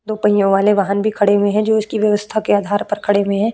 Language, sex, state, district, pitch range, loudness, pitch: Hindi, female, Uttar Pradesh, Budaun, 200-215 Hz, -16 LUFS, 205 Hz